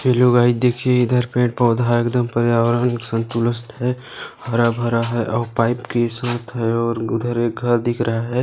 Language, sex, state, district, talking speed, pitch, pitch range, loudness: Hindi, male, Chhattisgarh, Balrampur, 180 wpm, 120 Hz, 115-125 Hz, -19 LUFS